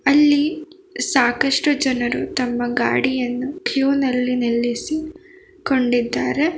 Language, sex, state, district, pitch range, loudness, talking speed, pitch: Kannada, female, Karnataka, Bangalore, 245-310 Hz, -19 LUFS, 80 wpm, 270 Hz